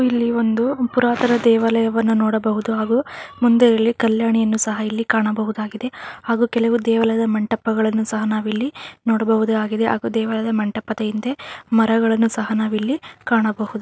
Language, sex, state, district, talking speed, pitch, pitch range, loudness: Kannada, female, Karnataka, Bellary, 95 wpm, 225 Hz, 220-235 Hz, -19 LUFS